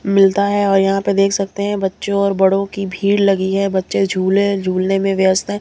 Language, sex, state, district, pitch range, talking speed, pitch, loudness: Hindi, female, Bihar, Katihar, 195-200 Hz, 225 wpm, 195 Hz, -16 LUFS